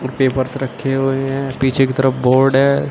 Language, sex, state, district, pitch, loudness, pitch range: Hindi, male, Uttar Pradesh, Shamli, 135 Hz, -16 LUFS, 130-135 Hz